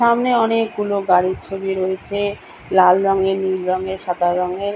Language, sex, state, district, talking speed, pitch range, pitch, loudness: Bengali, male, West Bengal, Kolkata, 140 wpm, 185-205 Hz, 190 Hz, -18 LUFS